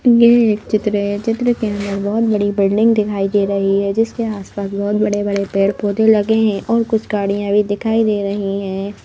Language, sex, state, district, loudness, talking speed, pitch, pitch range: Hindi, female, Madhya Pradesh, Bhopal, -16 LUFS, 190 wpm, 205 Hz, 200-220 Hz